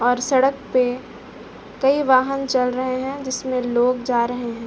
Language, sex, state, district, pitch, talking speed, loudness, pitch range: Hindi, female, Uttar Pradesh, Varanasi, 255 Hz, 165 wpm, -20 LUFS, 245-265 Hz